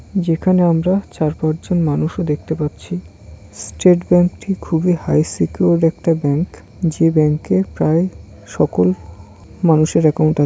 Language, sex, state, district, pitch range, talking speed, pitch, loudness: Bengali, male, West Bengal, Kolkata, 150-175 Hz, 130 wpm, 160 Hz, -17 LUFS